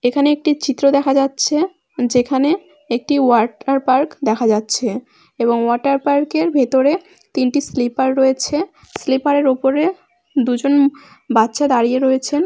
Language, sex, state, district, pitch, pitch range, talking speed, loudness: Bengali, female, West Bengal, Malda, 275 Hz, 250-295 Hz, 120 wpm, -16 LUFS